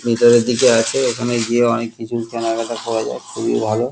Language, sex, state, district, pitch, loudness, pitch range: Bengali, male, West Bengal, Kolkata, 115 Hz, -17 LUFS, 115-120 Hz